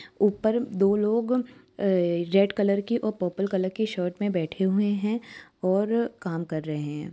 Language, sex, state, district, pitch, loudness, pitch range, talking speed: Hindi, male, Uttar Pradesh, Jyotiba Phule Nagar, 200 Hz, -26 LUFS, 180-215 Hz, 175 wpm